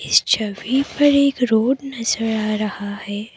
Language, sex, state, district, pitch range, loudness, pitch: Hindi, female, Assam, Kamrup Metropolitan, 210-265 Hz, -19 LUFS, 225 Hz